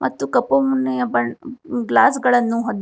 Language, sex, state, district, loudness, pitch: Kannada, female, Karnataka, Bangalore, -18 LUFS, 200 Hz